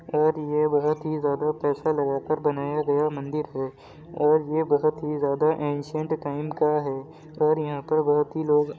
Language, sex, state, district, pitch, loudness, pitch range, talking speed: Hindi, male, Uttar Pradesh, Muzaffarnagar, 150 Hz, -25 LUFS, 145-155 Hz, 185 wpm